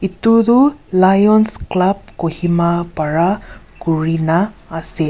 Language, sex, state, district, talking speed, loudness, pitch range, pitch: Nagamese, female, Nagaland, Kohima, 95 wpm, -15 LUFS, 165-205 Hz, 180 Hz